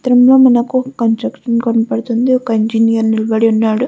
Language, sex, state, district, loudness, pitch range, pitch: Telugu, female, Andhra Pradesh, Guntur, -13 LUFS, 225-250 Hz, 230 Hz